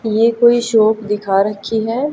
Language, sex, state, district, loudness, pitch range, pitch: Hindi, female, Haryana, Jhajjar, -15 LUFS, 210-235 Hz, 220 Hz